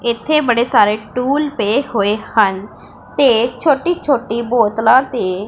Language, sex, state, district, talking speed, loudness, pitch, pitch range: Punjabi, female, Punjab, Pathankot, 130 wpm, -15 LUFS, 235 Hz, 215-275 Hz